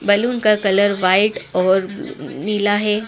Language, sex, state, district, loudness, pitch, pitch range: Hindi, female, Madhya Pradesh, Dhar, -16 LUFS, 205 Hz, 195-210 Hz